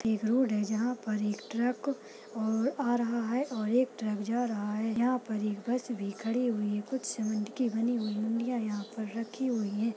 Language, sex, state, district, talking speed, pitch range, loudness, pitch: Hindi, female, Uttar Pradesh, Budaun, 210 wpm, 215-245 Hz, -32 LUFS, 225 Hz